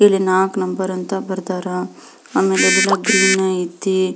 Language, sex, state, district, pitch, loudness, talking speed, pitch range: Kannada, female, Karnataka, Belgaum, 185 Hz, -17 LUFS, 145 wpm, 180-195 Hz